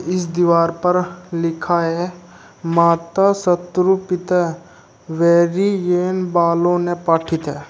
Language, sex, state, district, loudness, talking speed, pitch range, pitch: Hindi, male, Uttar Pradesh, Shamli, -17 LUFS, 100 wpm, 170-180 Hz, 175 Hz